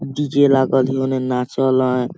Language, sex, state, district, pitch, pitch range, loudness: Awadhi, male, Chhattisgarh, Balrampur, 130 Hz, 130-135 Hz, -17 LUFS